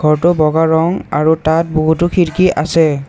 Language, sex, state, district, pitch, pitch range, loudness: Assamese, male, Assam, Kamrup Metropolitan, 160 Hz, 155-170 Hz, -13 LUFS